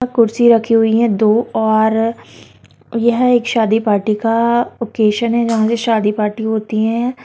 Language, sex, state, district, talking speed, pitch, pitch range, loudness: Hindi, female, Bihar, Sitamarhi, 155 wpm, 225 Hz, 215-235 Hz, -15 LUFS